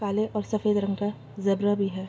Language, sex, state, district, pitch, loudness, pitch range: Hindi, female, Bihar, East Champaran, 205 Hz, -27 LUFS, 200-210 Hz